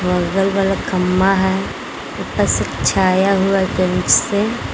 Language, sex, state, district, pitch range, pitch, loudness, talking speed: Hindi, female, Jharkhand, Garhwa, 185-195 Hz, 190 Hz, -16 LUFS, 140 wpm